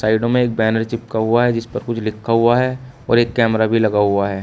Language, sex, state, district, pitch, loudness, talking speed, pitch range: Hindi, male, Uttar Pradesh, Shamli, 115 Hz, -17 LUFS, 255 wpm, 110-120 Hz